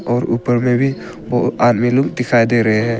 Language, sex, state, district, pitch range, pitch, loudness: Hindi, male, Arunachal Pradesh, Papum Pare, 115-125 Hz, 120 Hz, -16 LUFS